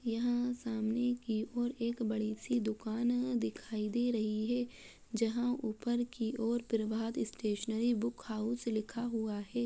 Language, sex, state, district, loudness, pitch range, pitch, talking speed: Hindi, female, Bihar, Muzaffarpur, -36 LUFS, 220-240 Hz, 230 Hz, 150 wpm